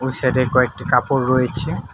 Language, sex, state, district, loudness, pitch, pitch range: Bengali, male, West Bengal, Alipurduar, -18 LUFS, 130 Hz, 125-130 Hz